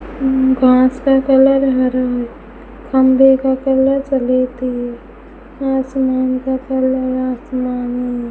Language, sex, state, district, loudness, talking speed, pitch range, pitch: Hindi, female, Rajasthan, Bikaner, -15 LUFS, 110 wpm, 255-265 Hz, 260 Hz